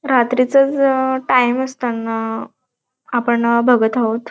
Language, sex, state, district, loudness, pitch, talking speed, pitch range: Marathi, female, Maharashtra, Dhule, -16 LUFS, 245 Hz, 125 wpm, 235-260 Hz